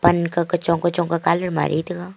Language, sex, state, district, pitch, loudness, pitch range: Wancho, female, Arunachal Pradesh, Longding, 170 Hz, -21 LUFS, 170-175 Hz